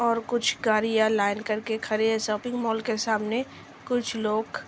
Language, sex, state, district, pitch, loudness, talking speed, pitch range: Hindi, female, Uttar Pradesh, Ghazipur, 220 Hz, -26 LUFS, 180 wpm, 215-235 Hz